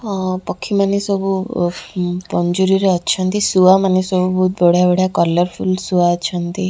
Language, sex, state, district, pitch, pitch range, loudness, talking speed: Odia, female, Odisha, Khordha, 185 Hz, 175-190 Hz, -16 LUFS, 125 wpm